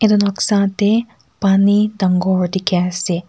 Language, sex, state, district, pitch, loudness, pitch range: Nagamese, female, Nagaland, Kohima, 195 Hz, -16 LUFS, 180-205 Hz